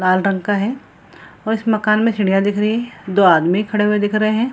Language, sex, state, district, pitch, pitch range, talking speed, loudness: Hindi, female, Bihar, Samastipur, 210 Hz, 195-220 Hz, 250 wpm, -17 LUFS